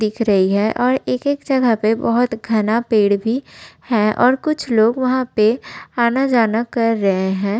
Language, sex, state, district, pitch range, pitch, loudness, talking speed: Hindi, female, Uttar Pradesh, Budaun, 215-250 Hz, 230 Hz, -17 LUFS, 175 wpm